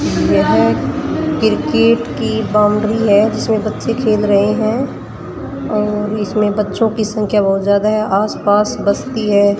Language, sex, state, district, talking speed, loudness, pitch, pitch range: Marwari, female, Rajasthan, Churu, 135 wpm, -15 LUFS, 210 Hz, 205-220 Hz